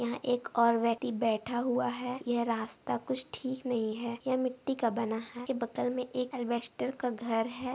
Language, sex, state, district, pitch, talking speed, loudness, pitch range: Hindi, female, Bihar, Saharsa, 240 Hz, 200 wpm, -33 LUFS, 235-255 Hz